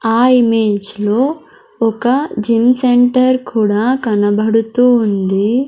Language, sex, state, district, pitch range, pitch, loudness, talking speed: Telugu, male, Andhra Pradesh, Sri Satya Sai, 215-255 Hz, 230 Hz, -13 LUFS, 85 wpm